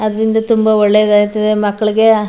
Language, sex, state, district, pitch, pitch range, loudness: Kannada, female, Karnataka, Mysore, 215 Hz, 210-220 Hz, -12 LUFS